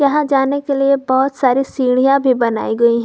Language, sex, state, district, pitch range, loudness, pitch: Hindi, female, Jharkhand, Garhwa, 255-275 Hz, -15 LUFS, 270 Hz